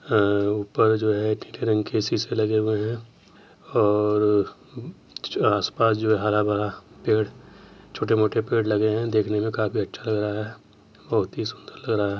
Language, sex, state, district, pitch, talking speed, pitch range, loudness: Hindi, male, Uttar Pradesh, Jyotiba Phule Nagar, 105 Hz, 190 wpm, 105-110 Hz, -24 LUFS